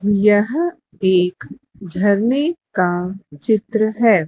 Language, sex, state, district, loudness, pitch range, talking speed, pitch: Hindi, male, Madhya Pradesh, Dhar, -18 LUFS, 185-230 Hz, 85 wpm, 205 Hz